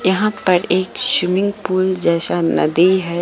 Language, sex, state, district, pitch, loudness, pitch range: Hindi, female, Bihar, Katihar, 185 Hz, -16 LUFS, 175-190 Hz